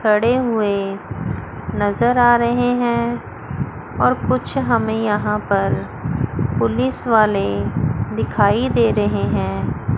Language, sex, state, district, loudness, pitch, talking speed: Hindi, female, Chandigarh, Chandigarh, -19 LUFS, 200 Hz, 100 wpm